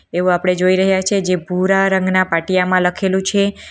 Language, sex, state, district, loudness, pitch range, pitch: Gujarati, female, Gujarat, Valsad, -16 LUFS, 180-190 Hz, 185 Hz